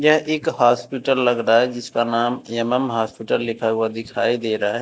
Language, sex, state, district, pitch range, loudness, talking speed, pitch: Hindi, male, Uttar Pradesh, Jyotiba Phule Nagar, 115-125 Hz, -20 LUFS, 200 wpm, 120 Hz